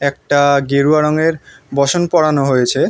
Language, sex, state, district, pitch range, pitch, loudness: Bengali, male, West Bengal, North 24 Parganas, 140-155 Hz, 140 Hz, -14 LUFS